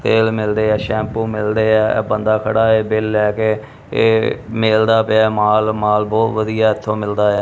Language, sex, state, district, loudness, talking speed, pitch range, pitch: Punjabi, male, Punjab, Kapurthala, -16 LUFS, 195 wpm, 105-110 Hz, 110 Hz